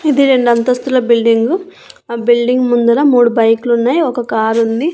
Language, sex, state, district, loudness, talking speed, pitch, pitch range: Telugu, female, Andhra Pradesh, Annamaya, -12 LUFS, 145 wpm, 240 Hz, 235-265 Hz